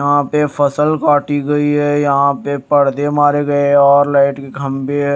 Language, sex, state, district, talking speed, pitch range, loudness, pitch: Hindi, male, Odisha, Nuapada, 185 wpm, 140-145 Hz, -14 LUFS, 145 Hz